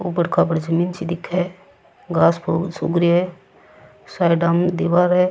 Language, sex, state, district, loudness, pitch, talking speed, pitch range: Rajasthani, female, Rajasthan, Churu, -19 LUFS, 175 Hz, 170 wpm, 170-180 Hz